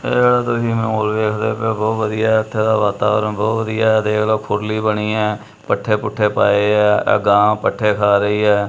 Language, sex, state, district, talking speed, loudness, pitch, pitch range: Punjabi, male, Punjab, Kapurthala, 220 wpm, -16 LUFS, 105 Hz, 105-110 Hz